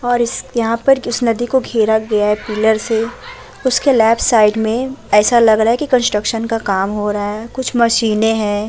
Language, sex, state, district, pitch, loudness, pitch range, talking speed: Hindi, female, Uttar Pradesh, Budaun, 225 Hz, -15 LUFS, 215-245 Hz, 220 wpm